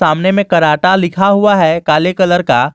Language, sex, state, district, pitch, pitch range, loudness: Hindi, male, Jharkhand, Garhwa, 180 Hz, 160-190 Hz, -11 LUFS